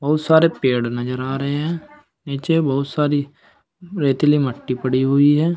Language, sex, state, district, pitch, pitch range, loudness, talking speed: Hindi, male, Uttar Pradesh, Saharanpur, 145 Hz, 135-160 Hz, -19 LUFS, 160 wpm